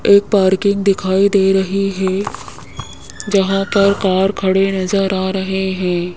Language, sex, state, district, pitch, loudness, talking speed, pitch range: Hindi, male, Rajasthan, Jaipur, 195 Hz, -15 LUFS, 135 wpm, 190-200 Hz